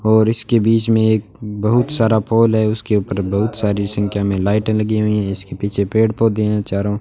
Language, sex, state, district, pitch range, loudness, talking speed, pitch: Hindi, male, Rajasthan, Bikaner, 100-110 Hz, -16 LUFS, 220 wpm, 110 Hz